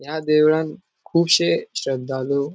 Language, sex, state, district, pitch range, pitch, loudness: Konkani, male, Goa, North and South Goa, 140-155 Hz, 150 Hz, -20 LUFS